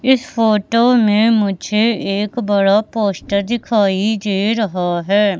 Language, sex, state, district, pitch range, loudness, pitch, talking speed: Hindi, female, Madhya Pradesh, Katni, 200-230 Hz, -16 LUFS, 210 Hz, 120 wpm